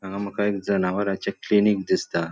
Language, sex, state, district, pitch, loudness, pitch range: Konkani, male, Goa, North and South Goa, 100 Hz, -23 LUFS, 95-100 Hz